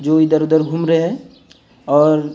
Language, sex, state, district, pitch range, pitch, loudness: Hindi, male, Maharashtra, Gondia, 150-160 Hz, 155 Hz, -15 LUFS